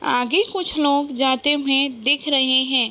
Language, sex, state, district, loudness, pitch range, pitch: Hindi, female, Uttar Pradesh, Budaun, -18 LUFS, 260-290 Hz, 275 Hz